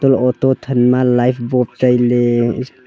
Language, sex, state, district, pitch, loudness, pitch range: Wancho, male, Arunachal Pradesh, Longding, 125 Hz, -14 LUFS, 120-130 Hz